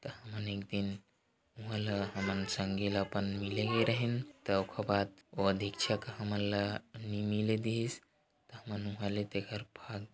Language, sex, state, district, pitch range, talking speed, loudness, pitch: Chhattisgarhi, male, Chhattisgarh, Korba, 100-110 Hz, 170 wpm, -36 LUFS, 105 Hz